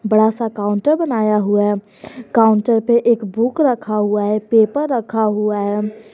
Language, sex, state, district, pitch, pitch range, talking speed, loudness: Hindi, female, Jharkhand, Garhwa, 220 Hz, 210-235 Hz, 165 wpm, -16 LUFS